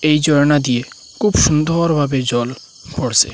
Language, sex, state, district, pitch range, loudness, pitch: Bengali, male, Assam, Hailakandi, 120-150 Hz, -16 LUFS, 140 Hz